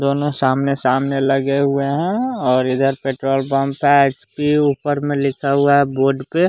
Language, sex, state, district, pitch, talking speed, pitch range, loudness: Hindi, male, Bihar, West Champaran, 140 Hz, 185 wpm, 135-145 Hz, -17 LUFS